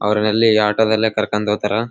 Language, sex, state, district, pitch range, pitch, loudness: Kannada, male, Karnataka, Bellary, 105-110 Hz, 105 Hz, -17 LUFS